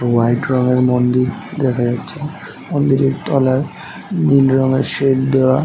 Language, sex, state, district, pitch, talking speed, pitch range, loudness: Bengali, male, West Bengal, Jhargram, 135 Hz, 125 wpm, 125-145 Hz, -16 LUFS